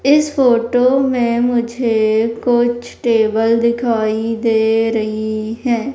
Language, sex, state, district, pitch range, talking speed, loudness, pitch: Hindi, female, Madhya Pradesh, Umaria, 220-245 Hz, 100 wpm, -15 LUFS, 235 Hz